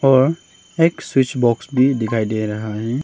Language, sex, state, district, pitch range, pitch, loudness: Hindi, male, Arunachal Pradesh, Longding, 110-135 Hz, 125 Hz, -18 LUFS